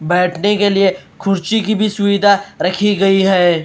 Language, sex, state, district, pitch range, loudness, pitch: Hindi, male, Bihar, Katihar, 185-205 Hz, -14 LUFS, 195 Hz